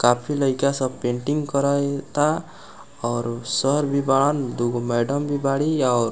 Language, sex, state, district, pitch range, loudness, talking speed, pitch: Bhojpuri, male, Bihar, Muzaffarpur, 120-145 Hz, -22 LUFS, 165 wpm, 140 Hz